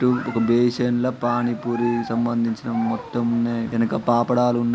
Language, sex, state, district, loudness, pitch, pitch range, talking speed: Telugu, male, Andhra Pradesh, Srikakulam, -22 LUFS, 120 Hz, 115-120 Hz, 140 wpm